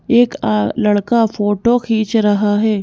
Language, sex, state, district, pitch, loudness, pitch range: Hindi, female, Madhya Pradesh, Bhopal, 215 Hz, -15 LUFS, 205-235 Hz